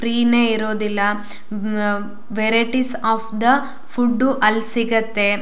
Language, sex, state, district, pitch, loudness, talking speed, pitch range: Kannada, female, Karnataka, Shimoga, 225 Hz, -19 LUFS, 100 wpm, 210-240 Hz